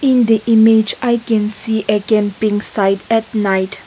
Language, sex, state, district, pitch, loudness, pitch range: English, female, Nagaland, Kohima, 220 Hz, -14 LUFS, 210-225 Hz